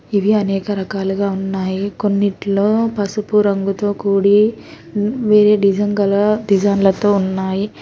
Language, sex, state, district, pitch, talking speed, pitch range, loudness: Telugu, female, Telangana, Hyderabad, 200 Hz, 100 wpm, 195-210 Hz, -16 LUFS